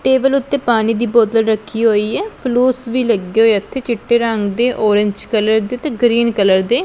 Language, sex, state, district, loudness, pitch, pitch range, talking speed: Punjabi, female, Punjab, Pathankot, -15 LUFS, 230 Hz, 215-250 Hz, 200 wpm